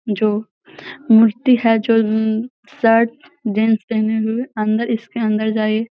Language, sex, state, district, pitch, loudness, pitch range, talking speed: Hindi, female, Bihar, Gaya, 225 Hz, -17 LUFS, 215-230 Hz, 140 wpm